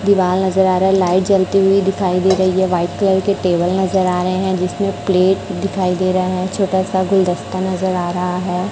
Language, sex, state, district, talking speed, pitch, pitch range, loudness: Hindi, male, Chhattisgarh, Raipur, 220 wpm, 185 Hz, 180-190 Hz, -16 LUFS